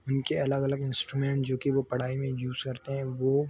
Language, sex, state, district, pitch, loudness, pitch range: Hindi, male, Jharkhand, Sahebganj, 135 Hz, -30 LUFS, 130-135 Hz